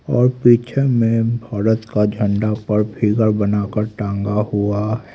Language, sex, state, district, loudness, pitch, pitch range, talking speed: Hindi, male, Haryana, Rohtak, -18 LUFS, 110 Hz, 105-115 Hz, 130 wpm